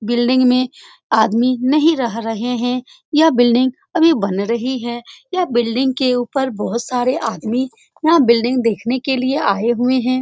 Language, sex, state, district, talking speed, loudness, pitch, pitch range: Hindi, female, Bihar, Saran, 165 wpm, -17 LUFS, 250 Hz, 235-265 Hz